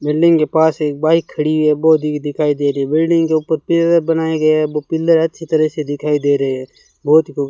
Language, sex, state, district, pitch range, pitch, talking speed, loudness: Hindi, male, Rajasthan, Bikaner, 150-160 Hz, 155 Hz, 265 wpm, -15 LUFS